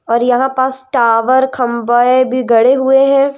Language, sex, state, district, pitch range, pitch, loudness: Hindi, female, Madhya Pradesh, Umaria, 240-265 Hz, 255 Hz, -12 LUFS